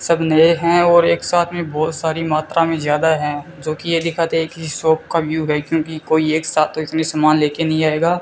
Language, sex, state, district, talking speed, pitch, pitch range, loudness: Hindi, male, Rajasthan, Bikaner, 240 wpm, 160 Hz, 155-165 Hz, -17 LUFS